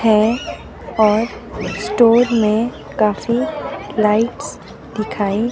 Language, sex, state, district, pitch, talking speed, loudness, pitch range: Hindi, female, Himachal Pradesh, Shimla, 220 Hz, 85 wpm, -17 LUFS, 215-235 Hz